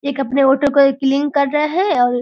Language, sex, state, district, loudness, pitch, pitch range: Hindi, female, Bihar, Darbhanga, -15 LUFS, 280 Hz, 270-285 Hz